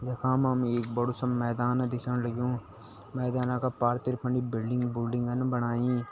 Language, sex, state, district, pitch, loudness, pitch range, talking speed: Hindi, male, Uttarakhand, Tehri Garhwal, 125 Hz, -30 LUFS, 120-125 Hz, 145 wpm